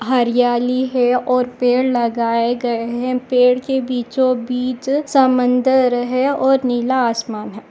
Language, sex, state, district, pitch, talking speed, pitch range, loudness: Hindi, female, Goa, North and South Goa, 250 Hz, 130 wpm, 240-255 Hz, -17 LUFS